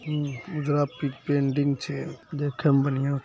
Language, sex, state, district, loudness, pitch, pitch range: Hindi, male, Bihar, Araria, -27 LUFS, 140 Hz, 140-145 Hz